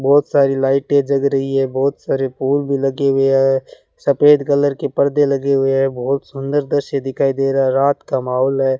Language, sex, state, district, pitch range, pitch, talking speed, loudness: Hindi, male, Rajasthan, Bikaner, 135-140 Hz, 135 Hz, 210 wpm, -16 LUFS